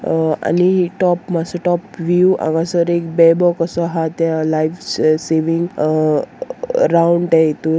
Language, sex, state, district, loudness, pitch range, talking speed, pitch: Konkani, female, Goa, North and South Goa, -16 LUFS, 160-175 Hz, 175 wpm, 170 Hz